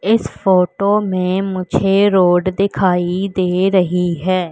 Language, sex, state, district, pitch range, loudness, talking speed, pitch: Hindi, female, Madhya Pradesh, Katni, 180-195 Hz, -15 LUFS, 120 wpm, 185 Hz